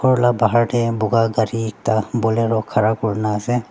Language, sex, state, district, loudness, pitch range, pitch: Nagamese, male, Nagaland, Dimapur, -18 LUFS, 110-120 Hz, 115 Hz